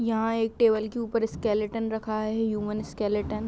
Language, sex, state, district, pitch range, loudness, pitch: Hindi, female, Uttar Pradesh, Hamirpur, 215-225 Hz, -27 LUFS, 220 Hz